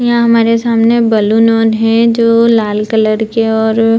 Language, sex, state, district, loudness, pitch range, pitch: Hindi, female, Bihar, Purnia, -10 LUFS, 220-230 Hz, 225 Hz